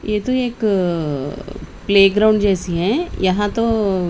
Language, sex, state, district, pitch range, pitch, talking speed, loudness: Hindi, female, Chandigarh, Chandigarh, 185-215 Hz, 200 Hz, 115 wpm, -17 LUFS